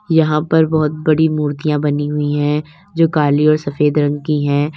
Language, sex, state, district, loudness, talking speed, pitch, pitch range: Hindi, female, Uttar Pradesh, Lalitpur, -16 LUFS, 190 wpm, 150 Hz, 145-155 Hz